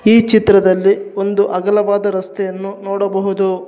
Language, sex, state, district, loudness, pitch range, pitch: Kannada, male, Karnataka, Bangalore, -14 LUFS, 195-205 Hz, 195 Hz